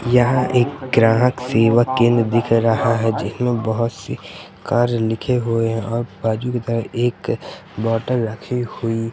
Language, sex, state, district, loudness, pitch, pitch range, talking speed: Hindi, male, Madhya Pradesh, Katni, -19 LUFS, 115 Hz, 115-120 Hz, 150 wpm